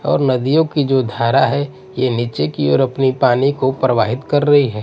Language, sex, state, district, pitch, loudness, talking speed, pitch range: Hindi, male, Odisha, Nuapada, 130 Hz, -16 LUFS, 210 wpm, 120-140 Hz